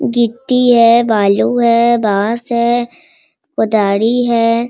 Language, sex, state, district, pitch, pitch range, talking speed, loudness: Hindi, female, Bihar, Sitamarhi, 235 Hz, 225-240 Hz, 115 wpm, -12 LUFS